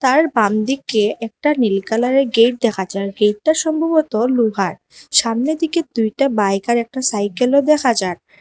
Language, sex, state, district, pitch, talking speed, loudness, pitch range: Bengali, female, Assam, Hailakandi, 235 Hz, 150 wpm, -17 LUFS, 210-275 Hz